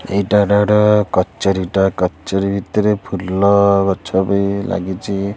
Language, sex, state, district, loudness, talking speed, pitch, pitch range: Odia, male, Odisha, Khordha, -16 LUFS, 100 wpm, 100 Hz, 95-100 Hz